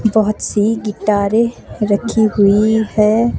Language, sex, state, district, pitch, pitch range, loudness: Hindi, female, Himachal Pradesh, Shimla, 215 Hz, 210-220 Hz, -15 LUFS